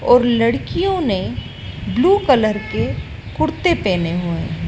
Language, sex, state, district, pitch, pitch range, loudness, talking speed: Hindi, female, Madhya Pradesh, Dhar, 230 Hz, 180-295 Hz, -18 LUFS, 115 wpm